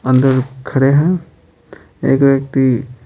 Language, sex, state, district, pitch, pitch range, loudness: Hindi, male, Bihar, Patna, 135 Hz, 130-140 Hz, -14 LUFS